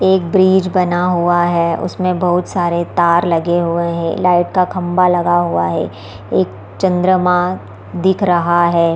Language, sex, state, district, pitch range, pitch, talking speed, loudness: Hindi, female, Bihar, East Champaran, 170-180 Hz, 175 Hz, 155 wpm, -15 LUFS